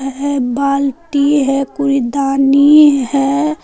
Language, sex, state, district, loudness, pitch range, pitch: Hindi, female, Jharkhand, Palamu, -13 LUFS, 270-285 Hz, 275 Hz